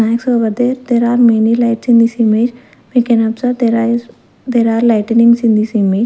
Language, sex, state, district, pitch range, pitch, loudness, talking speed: English, female, Punjab, Fazilka, 225-240 Hz, 235 Hz, -12 LUFS, 210 wpm